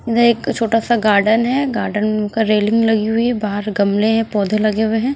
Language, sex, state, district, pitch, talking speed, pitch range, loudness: Hindi, female, Punjab, Pathankot, 220 Hz, 195 wpm, 210-230 Hz, -16 LUFS